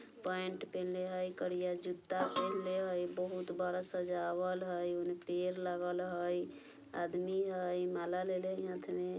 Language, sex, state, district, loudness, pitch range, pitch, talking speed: Bajjika, female, Bihar, Vaishali, -39 LUFS, 175-185 Hz, 180 Hz, 145 wpm